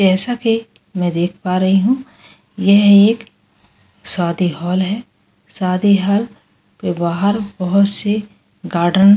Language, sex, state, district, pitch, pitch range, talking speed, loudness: Hindi, female, Goa, North and South Goa, 195 Hz, 175-205 Hz, 130 wpm, -16 LUFS